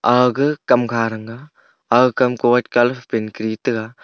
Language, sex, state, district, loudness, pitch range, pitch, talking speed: Wancho, male, Arunachal Pradesh, Longding, -17 LUFS, 115-125 Hz, 120 Hz, 180 wpm